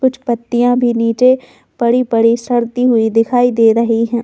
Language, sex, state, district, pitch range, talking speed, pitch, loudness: Hindi, female, Chhattisgarh, Balrampur, 230-245 Hz, 155 wpm, 235 Hz, -13 LUFS